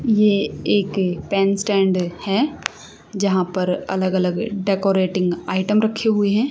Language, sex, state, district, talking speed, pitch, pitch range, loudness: Hindi, female, Haryana, Charkhi Dadri, 130 wpm, 195 Hz, 185-205 Hz, -20 LUFS